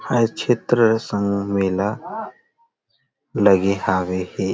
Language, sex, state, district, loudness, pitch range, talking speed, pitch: Chhattisgarhi, male, Chhattisgarh, Rajnandgaon, -20 LUFS, 95-120 Hz, 105 wpm, 100 Hz